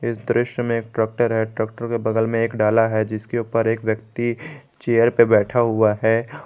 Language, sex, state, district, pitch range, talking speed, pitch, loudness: Hindi, male, Jharkhand, Garhwa, 110-120 Hz, 205 wpm, 115 Hz, -20 LUFS